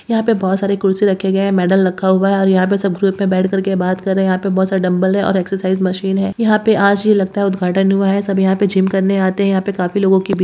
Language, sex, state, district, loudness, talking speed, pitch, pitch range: Hindi, female, Bihar, Purnia, -15 LUFS, 325 wpm, 195 Hz, 190-200 Hz